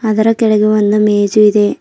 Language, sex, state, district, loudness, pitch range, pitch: Kannada, female, Karnataka, Bidar, -11 LUFS, 210-215 Hz, 210 Hz